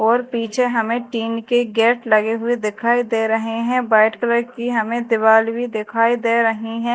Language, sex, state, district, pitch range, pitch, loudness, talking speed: Hindi, female, Madhya Pradesh, Dhar, 225-240 Hz, 230 Hz, -18 LUFS, 190 wpm